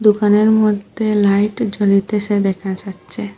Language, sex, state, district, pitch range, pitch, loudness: Bengali, female, Assam, Hailakandi, 200-215 Hz, 205 Hz, -16 LUFS